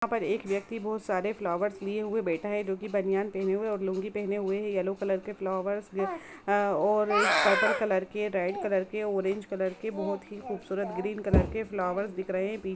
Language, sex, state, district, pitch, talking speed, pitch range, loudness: Hindi, female, Jharkhand, Jamtara, 200 Hz, 205 wpm, 190-210 Hz, -30 LUFS